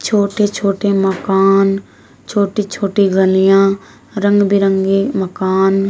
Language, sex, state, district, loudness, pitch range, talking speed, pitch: Hindi, female, Uttar Pradesh, Shamli, -14 LUFS, 195-200 Hz, 90 wpm, 195 Hz